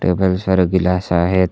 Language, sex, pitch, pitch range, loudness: Marathi, male, 90 Hz, 90-95 Hz, -16 LUFS